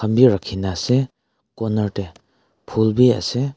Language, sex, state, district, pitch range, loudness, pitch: Nagamese, male, Nagaland, Kohima, 100-125 Hz, -19 LUFS, 110 Hz